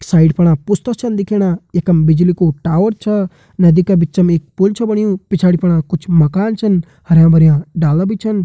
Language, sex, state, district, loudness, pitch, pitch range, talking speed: Hindi, male, Uttarakhand, Uttarkashi, -13 LUFS, 180 Hz, 165-200 Hz, 190 wpm